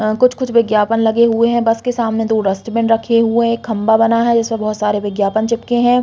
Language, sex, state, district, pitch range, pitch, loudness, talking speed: Hindi, female, Uttar Pradesh, Hamirpur, 220-235 Hz, 225 Hz, -15 LUFS, 240 wpm